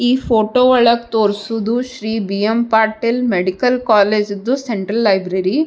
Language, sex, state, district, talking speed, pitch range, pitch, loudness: Kannada, female, Karnataka, Bijapur, 125 wpm, 210-245 Hz, 225 Hz, -16 LUFS